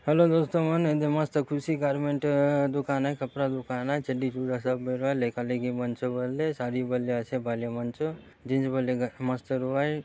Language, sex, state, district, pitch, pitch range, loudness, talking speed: Halbi, male, Chhattisgarh, Bastar, 130 Hz, 125-145 Hz, -28 LUFS, 190 wpm